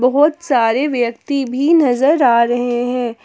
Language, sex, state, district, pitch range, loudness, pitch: Hindi, female, Jharkhand, Palamu, 240-285 Hz, -15 LUFS, 250 Hz